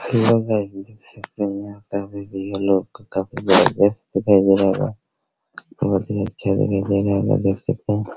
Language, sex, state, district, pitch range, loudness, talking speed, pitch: Hindi, male, Bihar, Araria, 95-105 Hz, -20 LUFS, 185 wpm, 100 Hz